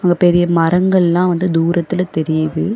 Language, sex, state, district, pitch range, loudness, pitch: Tamil, female, Tamil Nadu, Chennai, 165-180 Hz, -14 LUFS, 175 Hz